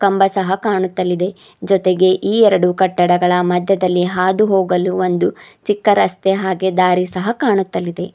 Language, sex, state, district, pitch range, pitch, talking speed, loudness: Kannada, female, Karnataka, Bidar, 180-195 Hz, 185 Hz, 125 wpm, -15 LUFS